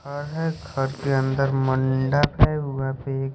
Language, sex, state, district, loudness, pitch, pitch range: Hindi, male, Odisha, Khordha, -23 LUFS, 135 Hz, 135-145 Hz